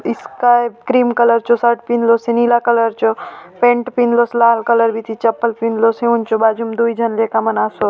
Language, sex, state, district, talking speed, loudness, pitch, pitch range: Halbi, female, Chhattisgarh, Bastar, 205 wpm, -15 LUFS, 235 Hz, 225-235 Hz